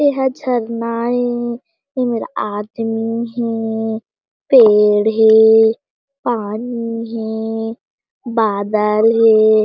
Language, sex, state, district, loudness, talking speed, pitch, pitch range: Chhattisgarhi, female, Chhattisgarh, Jashpur, -16 LUFS, 75 wpm, 225 Hz, 220-240 Hz